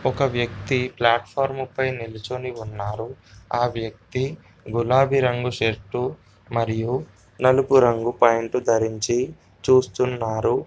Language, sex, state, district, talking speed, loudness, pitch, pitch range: Telugu, male, Telangana, Komaram Bheem, 90 wpm, -22 LUFS, 120 Hz, 115-130 Hz